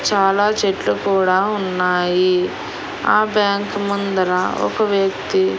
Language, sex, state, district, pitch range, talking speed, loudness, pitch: Telugu, female, Andhra Pradesh, Annamaya, 180-205 Hz, 95 wpm, -18 LUFS, 195 Hz